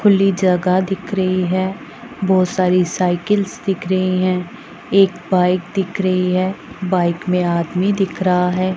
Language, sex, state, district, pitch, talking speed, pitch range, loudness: Hindi, female, Punjab, Pathankot, 185 Hz, 150 wpm, 180-195 Hz, -17 LUFS